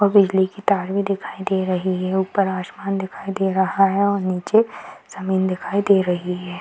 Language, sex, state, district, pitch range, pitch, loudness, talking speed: Hindi, female, Bihar, Madhepura, 185-200 Hz, 190 Hz, -20 LUFS, 190 wpm